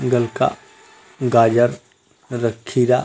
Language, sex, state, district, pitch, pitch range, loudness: Chhattisgarhi, male, Chhattisgarh, Rajnandgaon, 120 Hz, 115-125 Hz, -19 LUFS